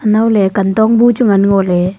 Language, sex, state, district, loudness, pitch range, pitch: Wancho, female, Arunachal Pradesh, Longding, -11 LUFS, 195-225 Hz, 200 Hz